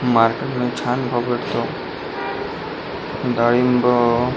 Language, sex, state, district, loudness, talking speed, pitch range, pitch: Marathi, male, Maharashtra, Pune, -20 LUFS, 80 wpm, 120-125 Hz, 120 Hz